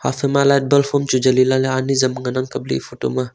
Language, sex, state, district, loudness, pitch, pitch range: Wancho, male, Arunachal Pradesh, Longding, -17 LUFS, 130 Hz, 130-140 Hz